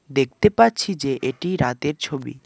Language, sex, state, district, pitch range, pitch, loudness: Bengali, male, West Bengal, Alipurduar, 135-185 Hz, 145 Hz, -21 LUFS